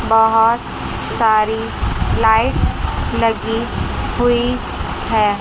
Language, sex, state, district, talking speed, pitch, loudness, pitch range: Hindi, male, Chandigarh, Chandigarh, 65 wpm, 225 Hz, -17 LUFS, 220-230 Hz